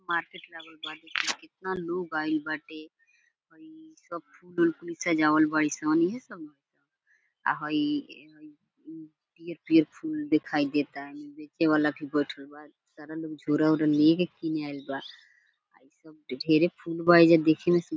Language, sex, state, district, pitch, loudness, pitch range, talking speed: Bhojpuri, female, Bihar, Gopalganj, 160 Hz, -27 LUFS, 155-185 Hz, 130 wpm